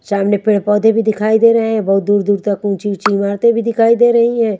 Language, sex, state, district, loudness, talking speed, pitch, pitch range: Hindi, female, Haryana, Charkhi Dadri, -13 LUFS, 260 wpm, 210 Hz, 205-230 Hz